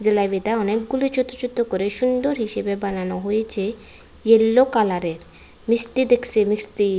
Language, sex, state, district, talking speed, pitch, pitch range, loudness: Bengali, female, Tripura, West Tripura, 120 wpm, 220 Hz, 200-245 Hz, -20 LUFS